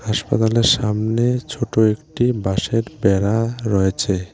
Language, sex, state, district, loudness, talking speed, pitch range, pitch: Bengali, male, West Bengal, Alipurduar, -19 LUFS, 95 wpm, 100-115 Hz, 110 Hz